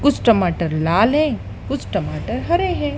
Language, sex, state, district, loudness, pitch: Hindi, female, Madhya Pradesh, Dhar, -19 LUFS, 230 Hz